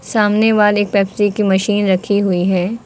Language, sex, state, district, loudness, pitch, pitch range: Hindi, female, Uttar Pradesh, Lucknow, -15 LUFS, 205 Hz, 190-210 Hz